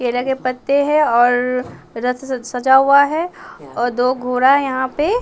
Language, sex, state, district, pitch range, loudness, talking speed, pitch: Hindi, male, Bihar, West Champaran, 250-280 Hz, -16 LUFS, 185 wpm, 260 Hz